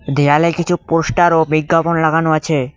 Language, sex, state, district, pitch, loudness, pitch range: Bengali, male, West Bengal, Cooch Behar, 165 Hz, -14 LUFS, 155-170 Hz